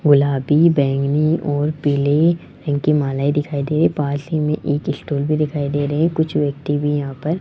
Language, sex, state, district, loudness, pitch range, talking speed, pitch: Hindi, male, Rajasthan, Jaipur, -18 LUFS, 145-155 Hz, 195 wpm, 145 Hz